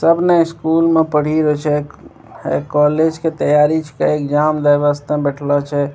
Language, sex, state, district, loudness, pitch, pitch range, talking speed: Maithili, male, Bihar, Begusarai, -15 LUFS, 150 Hz, 145-160 Hz, 170 wpm